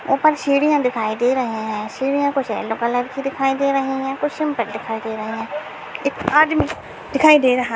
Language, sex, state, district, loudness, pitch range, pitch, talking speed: Hindi, female, Bihar, Saharsa, -19 LUFS, 225-280 Hz, 270 Hz, 210 wpm